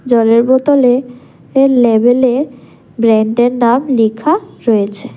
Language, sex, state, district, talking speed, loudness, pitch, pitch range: Bengali, female, Tripura, West Tripura, 105 wpm, -12 LUFS, 245 Hz, 230-260 Hz